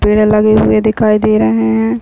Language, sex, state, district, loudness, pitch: Hindi, female, Chhattisgarh, Raigarh, -11 LUFS, 210 Hz